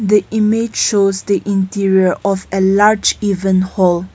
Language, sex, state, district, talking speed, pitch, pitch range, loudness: English, female, Nagaland, Kohima, 145 wpm, 195 Hz, 190-205 Hz, -14 LUFS